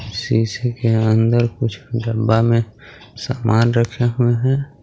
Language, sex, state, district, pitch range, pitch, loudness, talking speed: Hindi, male, Jharkhand, Garhwa, 110-120 Hz, 115 Hz, -18 LUFS, 125 wpm